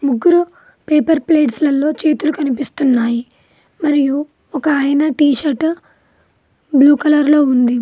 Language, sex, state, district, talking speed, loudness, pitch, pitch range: Telugu, female, Telangana, Mahabubabad, 105 wpm, -14 LUFS, 295 Hz, 280-310 Hz